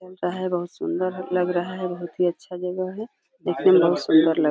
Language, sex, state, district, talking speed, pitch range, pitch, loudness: Hindi, female, Uttar Pradesh, Deoria, 255 wpm, 175-185 Hz, 180 Hz, -23 LUFS